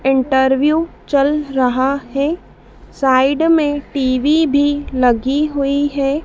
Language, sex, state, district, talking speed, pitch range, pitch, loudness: Hindi, female, Madhya Pradesh, Dhar, 105 wpm, 265-290 Hz, 280 Hz, -16 LUFS